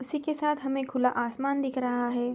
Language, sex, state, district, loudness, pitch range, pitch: Hindi, female, Bihar, Begusarai, -29 LUFS, 245-275 Hz, 260 Hz